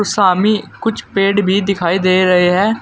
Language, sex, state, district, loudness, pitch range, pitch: Hindi, male, Uttar Pradesh, Saharanpur, -14 LUFS, 185-205 Hz, 195 Hz